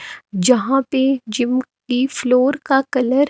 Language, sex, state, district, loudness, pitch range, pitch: Hindi, female, Himachal Pradesh, Shimla, -18 LUFS, 250-270 Hz, 260 Hz